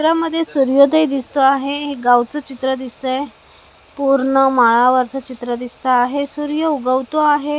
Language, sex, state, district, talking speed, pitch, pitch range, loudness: Marathi, female, Maharashtra, Mumbai Suburban, 125 wpm, 270 Hz, 255-295 Hz, -16 LUFS